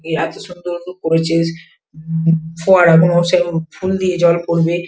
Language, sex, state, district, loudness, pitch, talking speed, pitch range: Bengali, female, West Bengal, Kolkata, -15 LUFS, 170 Hz, 100 wpm, 165-175 Hz